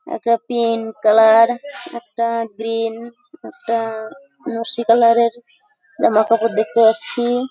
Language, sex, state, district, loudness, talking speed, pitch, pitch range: Bengali, female, West Bengal, Jhargram, -17 LUFS, 95 wpm, 230 Hz, 225-240 Hz